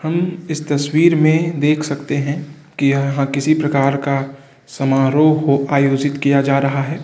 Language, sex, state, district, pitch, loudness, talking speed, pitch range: Hindi, male, Uttar Pradesh, Varanasi, 145 Hz, -16 LUFS, 160 wpm, 140-155 Hz